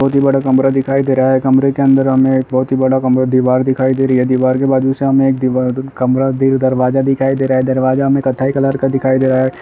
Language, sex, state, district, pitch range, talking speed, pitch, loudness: Hindi, male, Bihar, Gaya, 130-135 Hz, 280 wpm, 130 Hz, -13 LUFS